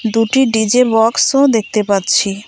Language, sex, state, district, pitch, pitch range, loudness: Bengali, female, West Bengal, Cooch Behar, 225 Hz, 210-250 Hz, -13 LUFS